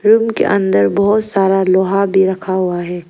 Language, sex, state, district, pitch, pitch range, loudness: Hindi, female, Arunachal Pradesh, Lower Dibang Valley, 190 Hz, 185-200 Hz, -14 LUFS